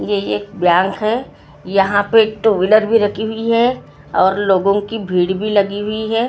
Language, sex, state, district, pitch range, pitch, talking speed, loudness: Hindi, female, Maharashtra, Gondia, 190-220 Hz, 205 Hz, 210 wpm, -16 LUFS